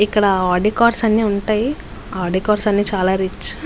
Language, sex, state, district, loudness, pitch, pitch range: Telugu, female, Andhra Pradesh, Visakhapatnam, -17 LUFS, 210 Hz, 190-215 Hz